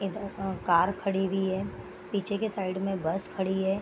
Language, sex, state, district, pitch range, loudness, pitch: Hindi, female, Bihar, Gopalganj, 190-200 Hz, -30 LUFS, 195 Hz